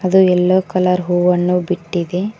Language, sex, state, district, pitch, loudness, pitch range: Kannada, female, Karnataka, Koppal, 180 Hz, -15 LUFS, 180-185 Hz